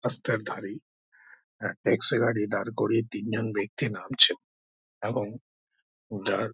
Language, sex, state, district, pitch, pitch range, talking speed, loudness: Bengali, male, West Bengal, Dakshin Dinajpur, 105 Hz, 100-115 Hz, 120 wpm, -24 LUFS